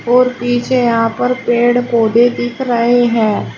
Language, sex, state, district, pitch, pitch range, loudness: Hindi, female, Uttar Pradesh, Shamli, 240 Hz, 235-245 Hz, -13 LUFS